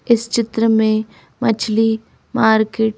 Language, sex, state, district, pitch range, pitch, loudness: Hindi, female, Madhya Pradesh, Bhopal, 220-230 Hz, 220 Hz, -17 LUFS